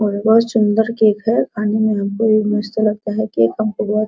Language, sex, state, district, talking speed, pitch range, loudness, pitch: Hindi, female, Bihar, Araria, 265 wpm, 210-220 Hz, -16 LUFS, 215 Hz